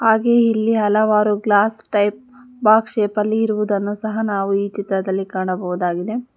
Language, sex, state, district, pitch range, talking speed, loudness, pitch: Kannada, female, Karnataka, Bangalore, 200-220 Hz, 125 wpm, -18 LUFS, 210 Hz